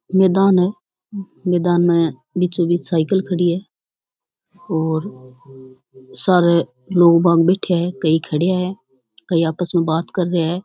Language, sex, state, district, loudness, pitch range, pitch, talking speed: Rajasthani, female, Rajasthan, Churu, -17 LUFS, 160-180 Hz, 175 Hz, 140 wpm